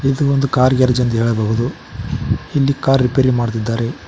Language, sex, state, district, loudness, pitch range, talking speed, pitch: Kannada, male, Karnataka, Koppal, -16 LUFS, 115-135 Hz, 145 wpm, 125 Hz